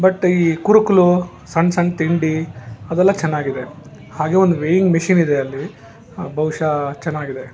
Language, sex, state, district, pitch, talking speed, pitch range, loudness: Kannada, male, Karnataka, Bangalore, 160 Hz, 135 wpm, 145-180 Hz, -17 LUFS